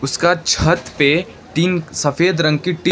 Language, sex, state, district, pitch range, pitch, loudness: Hindi, male, West Bengal, Darjeeling, 150-175 Hz, 165 Hz, -16 LUFS